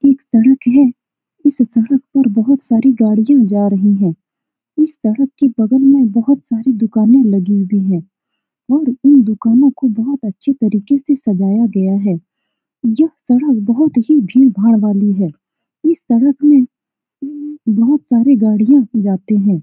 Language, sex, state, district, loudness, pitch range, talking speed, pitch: Hindi, female, Bihar, Saran, -13 LUFS, 215-275 Hz, 155 wpm, 245 Hz